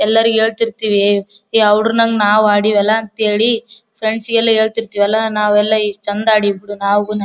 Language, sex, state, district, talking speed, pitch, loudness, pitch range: Kannada, female, Karnataka, Bellary, 140 wpm, 215 Hz, -14 LUFS, 205-225 Hz